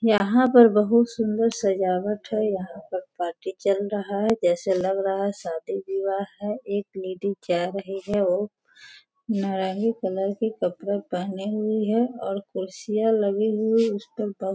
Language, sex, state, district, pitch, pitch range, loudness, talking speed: Hindi, female, Bihar, Sitamarhi, 200 Hz, 190-220 Hz, -24 LUFS, 150 wpm